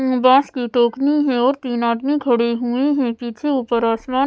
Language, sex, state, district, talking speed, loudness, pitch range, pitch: Hindi, female, Odisha, Sambalpur, 180 wpm, -18 LUFS, 235-275 Hz, 255 Hz